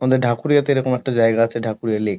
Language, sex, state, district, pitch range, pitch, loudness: Bengali, male, West Bengal, Kolkata, 115-130 Hz, 120 Hz, -19 LUFS